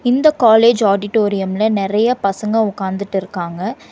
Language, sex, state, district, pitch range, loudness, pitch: Tamil, female, Karnataka, Bangalore, 195-225 Hz, -16 LUFS, 210 Hz